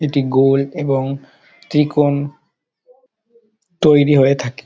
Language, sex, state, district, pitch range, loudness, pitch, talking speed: Bengali, male, West Bengal, Dakshin Dinajpur, 135-170 Hz, -15 LUFS, 145 Hz, 90 wpm